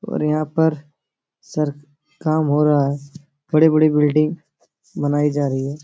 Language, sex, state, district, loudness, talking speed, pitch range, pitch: Hindi, male, Bihar, Supaul, -19 LUFS, 145 wpm, 145-155 Hz, 150 Hz